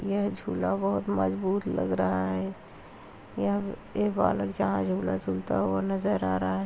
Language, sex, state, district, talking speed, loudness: Hindi, female, Uttar Pradesh, Hamirpur, 160 wpm, -29 LUFS